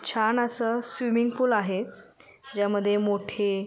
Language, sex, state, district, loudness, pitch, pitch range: Marathi, female, Maharashtra, Sindhudurg, -26 LUFS, 220 Hz, 205-240 Hz